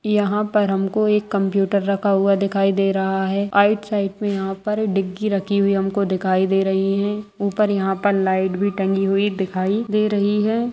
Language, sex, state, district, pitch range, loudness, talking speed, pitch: Hindi, female, Bihar, Begusarai, 195-205 Hz, -20 LUFS, 195 wpm, 200 Hz